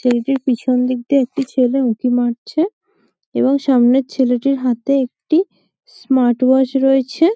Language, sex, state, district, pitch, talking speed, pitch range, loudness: Bengali, female, West Bengal, Malda, 260 Hz, 140 wpm, 250-275 Hz, -16 LUFS